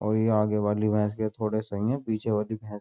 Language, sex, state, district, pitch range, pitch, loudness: Hindi, male, Uttar Pradesh, Jyotiba Phule Nagar, 105-110 Hz, 105 Hz, -27 LUFS